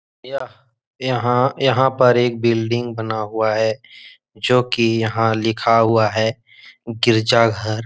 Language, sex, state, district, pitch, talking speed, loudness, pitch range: Hindi, male, Bihar, Jahanabad, 115 Hz, 115 wpm, -18 LUFS, 110-125 Hz